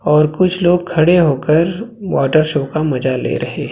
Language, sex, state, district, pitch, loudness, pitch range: Hindi, male, Maharashtra, Gondia, 160 Hz, -15 LUFS, 150-180 Hz